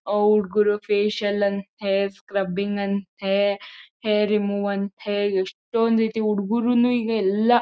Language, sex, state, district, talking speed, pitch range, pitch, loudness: Kannada, female, Karnataka, Mysore, 100 wpm, 200-215 Hz, 205 Hz, -23 LUFS